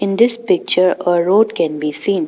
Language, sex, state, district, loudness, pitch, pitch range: English, female, Arunachal Pradesh, Papum Pare, -15 LUFS, 195 Hz, 175-230 Hz